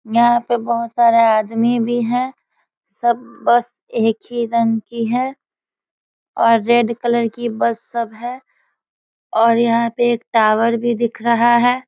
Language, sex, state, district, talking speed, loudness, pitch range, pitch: Hindi, female, Bihar, Sitamarhi, 150 wpm, -17 LUFS, 230-240 Hz, 235 Hz